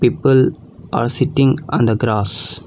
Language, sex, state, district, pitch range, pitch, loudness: English, female, Telangana, Hyderabad, 110-130 Hz, 120 Hz, -16 LUFS